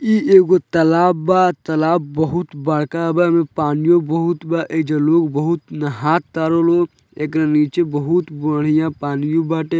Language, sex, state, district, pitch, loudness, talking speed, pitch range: Bhojpuri, male, Bihar, Muzaffarpur, 160 Hz, -17 LUFS, 140 wpm, 150-170 Hz